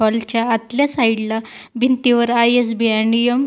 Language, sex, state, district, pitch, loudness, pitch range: Marathi, female, Maharashtra, Pune, 235 Hz, -17 LUFS, 225-245 Hz